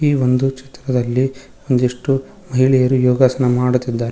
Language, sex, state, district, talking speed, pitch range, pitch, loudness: Kannada, male, Karnataka, Koppal, 100 wpm, 125-135 Hz, 130 Hz, -17 LUFS